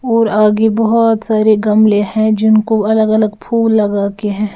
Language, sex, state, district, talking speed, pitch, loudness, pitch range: Hindi, female, Bihar, Patna, 160 wpm, 215 Hz, -12 LUFS, 210-220 Hz